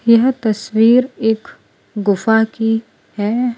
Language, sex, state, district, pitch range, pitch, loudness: Hindi, female, Gujarat, Valsad, 220-235 Hz, 225 Hz, -16 LUFS